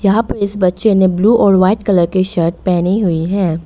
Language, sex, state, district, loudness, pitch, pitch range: Hindi, female, Arunachal Pradesh, Lower Dibang Valley, -13 LUFS, 190 Hz, 180-200 Hz